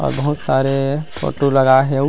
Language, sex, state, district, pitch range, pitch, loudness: Chhattisgarhi, male, Chhattisgarh, Rajnandgaon, 135-145 Hz, 135 Hz, -17 LUFS